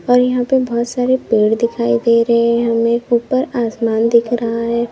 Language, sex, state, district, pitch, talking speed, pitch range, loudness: Hindi, female, Uttar Pradesh, Lalitpur, 235 Hz, 195 wpm, 230-245 Hz, -15 LUFS